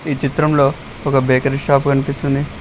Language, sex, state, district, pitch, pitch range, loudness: Telugu, male, Telangana, Mahabubabad, 140 Hz, 135-145 Hz, -16 LUFS